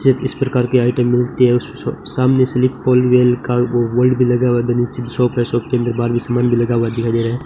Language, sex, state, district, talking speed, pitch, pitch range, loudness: Hindi, male, Rajasthan, Bikaner, 260 wpm, 125 Hz, 120-125 Hz, -16 LUFS